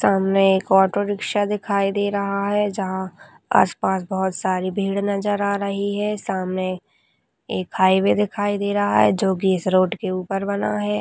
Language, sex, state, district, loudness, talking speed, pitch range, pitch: Hindi, female, Rajasthan, Nagaur, -21 LUFS, 180 wpm, 190-205 Hz, 195 Hz